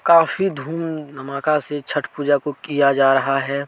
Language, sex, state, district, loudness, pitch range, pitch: Hindi, male, Jharkhand, Deoghar, -20 LUFS, 140-160 Hz, 145 Hz